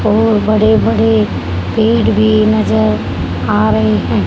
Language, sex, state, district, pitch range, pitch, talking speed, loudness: Hindi, female, Haryana, Rohtak, 105-110 Hz, 110 Hz, 125 wpm, -12 LUFS